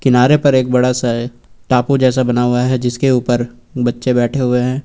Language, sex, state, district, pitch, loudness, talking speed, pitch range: Hindi, male, Uttar Pradesh, Lucknow, 125 Hz, -15 LUFS, 200 wpm, 120-130 Hz